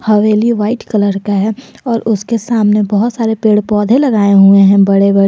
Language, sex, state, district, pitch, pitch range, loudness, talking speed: Hindi, male, Jharkhand, Garhwa, 210 Hz, 200-225 Hz, -11 LUFS, 195 wpm